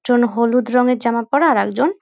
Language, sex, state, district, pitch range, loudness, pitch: Bengali, female, West Bengal, North 24 Parganas, 235-280 Hz, -16 LUFS, 245 Hz